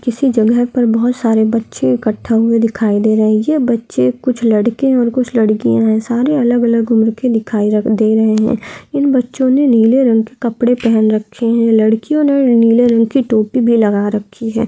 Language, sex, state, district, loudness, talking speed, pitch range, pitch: Hindi, female, Bihar, Gaya, -13 LUFS, 205 wpm, 220-245 Hz, 230 Hz